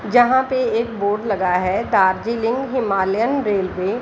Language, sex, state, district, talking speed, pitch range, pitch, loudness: Hindi, female, Bihar, Kishanganj, 150 wpm, 190-245 Hz, 225 Hz, -19 LUFS